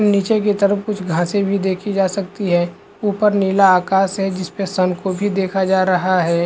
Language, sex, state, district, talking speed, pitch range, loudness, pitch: Hindi, male, Chhattisgarh, Bastar, 205 wpm, 185-200 Hz, -17 LUFS, 195 Hz